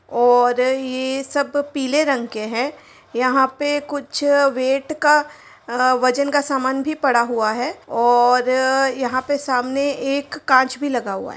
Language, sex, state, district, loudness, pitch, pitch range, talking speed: Hindi, female, Bihar, Madhepura, -19 LUFS, 265 Hz, 250-285 Hz, 155 wpm